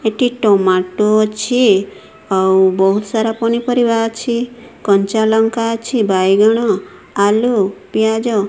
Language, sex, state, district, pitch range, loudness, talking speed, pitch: Odia, female, Odisha, Sambalpur, 200-230 Hz, -14 LUFS, 105 wpm, 220 Hz